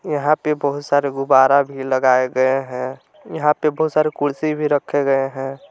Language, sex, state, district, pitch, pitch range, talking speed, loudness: Hindi, male, Jharkhand, Palamu, 140 Hz, 135-150 Hz, 190 wpm, -18 LUFS